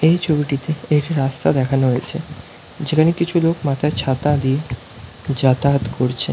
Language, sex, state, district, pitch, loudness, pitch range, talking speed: Bengali, male, West Bengal, North 24 Parganas, 140 Hz, -19 LUFS, 130-155 Hz, 140 wpm